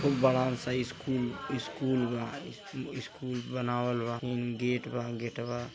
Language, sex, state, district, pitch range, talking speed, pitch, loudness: Hindi, male, Uttar Pradesh, Gorakhpur, 120-125 Hz, 145 wpm, 125 Hz, -33 LUFS